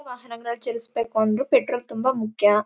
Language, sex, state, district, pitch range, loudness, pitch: Kannada, female, Karnataka, Mysore, 220-245 Hz, -23 LUFS, 230 Hz